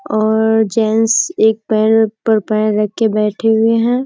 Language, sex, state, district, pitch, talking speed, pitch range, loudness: Hindi, female, Bihar, Kishanganj, 220 Hz, 160 wpm, 215-225 Hz, -14 LUFS